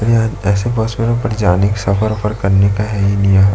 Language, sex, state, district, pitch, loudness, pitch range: Hindi, male, Chhattisgarh, Jashpur, 105 Hz, -15 LUFS, 100-110 Hz